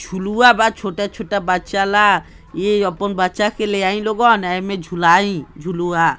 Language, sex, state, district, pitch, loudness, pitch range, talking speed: Hindi, male, Bihar, East Champaran, 195 Hz, -17 LUFS, 180-210 Hz, 145 wpm